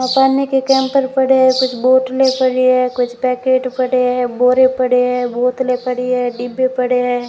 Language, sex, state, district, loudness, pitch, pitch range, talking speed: Hindi, female, Rajasthan, Bikaner, -15 LUFS, 255 Hz, 250-260 Hz, 180 wpm